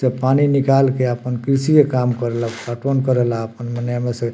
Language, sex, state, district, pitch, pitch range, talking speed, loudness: Bhojpuri, male, Bihar, Muzaffarpur, 125 Hz, 120-135 Hz, 220 wpm, -18 LUFS